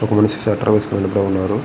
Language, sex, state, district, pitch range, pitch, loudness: Telugu, male, Andhra Pradesh, Visakhapatnam, 100-105 Hz, 105 Hz, -17 LUFS